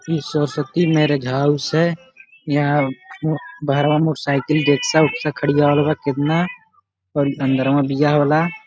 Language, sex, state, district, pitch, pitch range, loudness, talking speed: Bhojpuri, male, Uttar Pradesh, Gorakhpur, 150 Hz, 140-155 Hz, -18 LUFS, 120 wpm